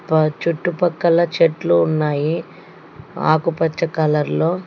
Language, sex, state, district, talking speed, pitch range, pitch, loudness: Telugu, female, Telangana, Hyderabad, 90 wpm, 155-170 Hz, 165 Hz, -18 LUFS